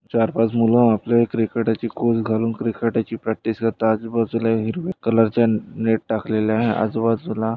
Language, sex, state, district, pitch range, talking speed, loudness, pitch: Marathi, male, Maharashtra, Nagpur, 110-115 Hz, 125 wpm, -20 LUFS, 115 Hz